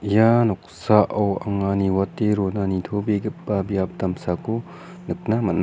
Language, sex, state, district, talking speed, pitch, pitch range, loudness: Garo, male, Meghalaya, West Garo Hills, 105 wpm, 100 Hz, 95-110 Hz, -22 LUFS